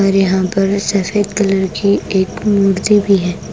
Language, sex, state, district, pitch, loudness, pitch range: Hindi, female, Punjab, Kapurthala, 195 Hz, -14 LUFS, 190-200 Hz